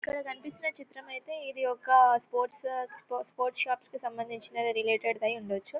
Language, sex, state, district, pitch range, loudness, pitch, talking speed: Telugu, female, Telangana, Karimnagar, 230-265 Hz, -30 LUFS, 250 Hz, 145 wpm